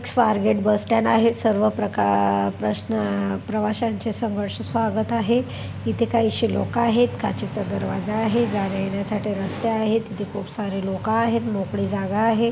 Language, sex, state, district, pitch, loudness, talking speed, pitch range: Marathi, male, Maharashtra, Pune, 215 Hz, -22 LUFS, 135 wpm, 195-225 Hz